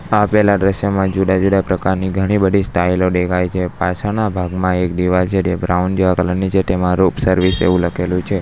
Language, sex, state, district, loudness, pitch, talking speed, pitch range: Gujarati, male, Gujarat, Valsad, -16 LUFS, 95 Hz, 190 wpm, 90-95 Hz